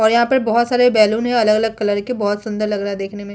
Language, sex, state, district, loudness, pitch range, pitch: Hindi, female, Chhattisgarh, Kabirdham, -17 LUFS, 205-235 Hz, 215 Hz